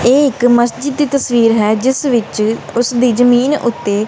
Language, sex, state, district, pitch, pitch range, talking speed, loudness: Punjabi, female, Punjab, Kapurthala, 240 Hz, 225-260 Hz, 175 wpm, -13 LUFS